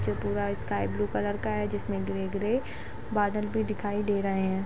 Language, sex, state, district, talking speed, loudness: Hindi, female, Bihar, Gopalganj, 205 wpm, -30 LUFS